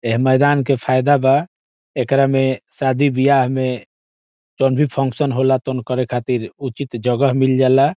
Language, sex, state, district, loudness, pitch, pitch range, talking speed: Bhojpuri, male, Bihar, Saran, -17 LUFS, 130 Hz, 130-140 Hz, 160 wpm